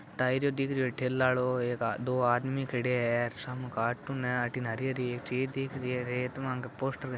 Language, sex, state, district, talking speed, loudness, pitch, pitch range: Marwari, male, Rajasthan, Churu, 175 wpm, -32 LUFS, 125 Hz, 125-130 Hz